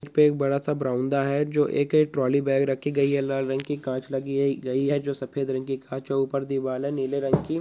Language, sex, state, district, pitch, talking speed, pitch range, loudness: Hindi, male, Goa, North and South Goa, 140 Hz, 260 wpm, 135-145 Hz, -25 LUFS